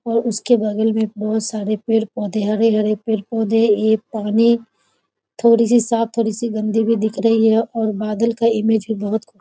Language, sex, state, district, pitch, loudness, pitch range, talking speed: Maithili, female, Bihar, Muzaffarpur, 220 Hz, -18 LUFS, 215-230 Hz, 185 wpm